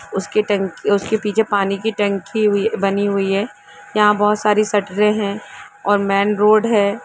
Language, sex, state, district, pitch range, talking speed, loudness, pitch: Hindi, female, Jharkhand, Jamtara, 200-210 Hz, 170 wpm, -17 LUFS, 205 Hz